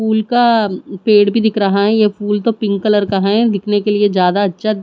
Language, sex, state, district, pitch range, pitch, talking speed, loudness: Hindi, female, Chhattisgarh, Raipur, 200-220 Hz, 205 Hz, 235 wpm, -14 LUFS